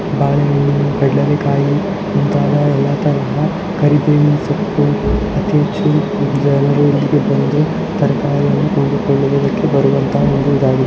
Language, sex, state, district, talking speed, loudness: Kannada, male, Karnataka, Belgaum, 60 wpm, -14 LUFS